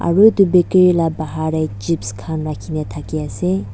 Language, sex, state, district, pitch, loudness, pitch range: Nagamese, female, Nagaland, Dimapur, 155 Hz, -17 LUFS, 100-170 Hz